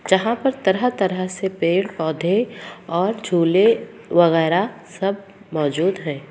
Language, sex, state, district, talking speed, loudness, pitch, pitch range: Hindi, female, Bihar, Madhepura, 105 wpm, -20 LUFS, 190 Hz, 170-205 Hz